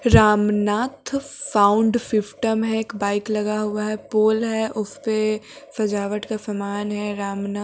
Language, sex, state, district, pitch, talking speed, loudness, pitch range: Hindi, female, Bihar, West Champaran, 215 Hz, 150 wpm, -22 LUFS, 205-220 Hz